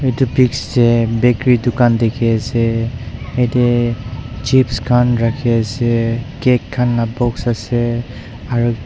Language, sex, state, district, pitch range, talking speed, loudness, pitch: Nagamese, male, Nagaland, Dimapur, 115-125 Hz, 110 wpm, -16 LUFS, 120 Hz